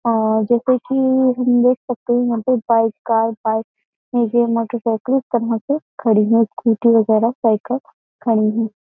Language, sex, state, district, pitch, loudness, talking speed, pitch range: Hindi, female, Uttar Pradesh, Jyotiba Phule Nagar, 230 Hz, -17 LUFS, 155 wpm, 225-250 Hz